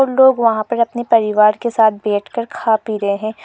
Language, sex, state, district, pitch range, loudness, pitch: Hindi, female, Arunachal Pradesh, Lower Dibang Valley, 210-235 Hz, -15 LUFS, 220 Hz